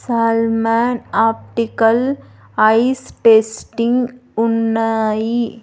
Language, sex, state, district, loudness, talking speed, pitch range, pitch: Telugu, female, Andhra Pradesh, Sri Satya Sai, -16 LUFS, 55 wpm, 225-235 Hz, 230 Hz